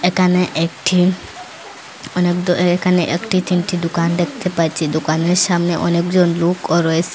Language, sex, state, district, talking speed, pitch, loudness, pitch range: Bengali, female, Assam, Hailakandi, 125 wpm, 175 Hz, -16 LUFS, 170-180 Hz